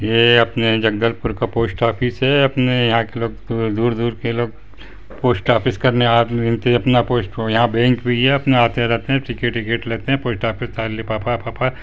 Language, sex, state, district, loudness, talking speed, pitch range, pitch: Hindi, male, Chhattisgarh, Bastar, -18 LUFS, 195 wpm, 115-125 Hz, 115 Hz